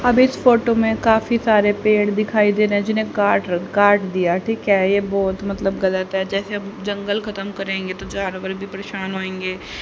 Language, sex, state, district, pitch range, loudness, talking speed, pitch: Hindi, female, Haryana, Jhajjar, 190-210 Hz, -19 LUFS, 195 wpm, 200 Hz